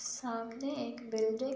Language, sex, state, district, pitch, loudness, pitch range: Hindi, female, Uttar Pradesh, Budaun, 240 Hz, -37 LUFS, 230-265 Hz